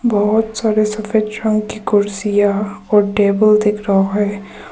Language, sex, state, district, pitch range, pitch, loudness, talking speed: Hindi, female, Arunachal Pradesh, Papum Pare, 205-215 Hz, 210 Hz, -16 LUFS, 140 wpm